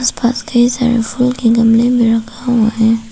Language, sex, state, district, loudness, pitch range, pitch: Hindi, female, Arunachal Pradesh, Papum Pare, -13 LUFS, 225-245 Hz, 235 Hz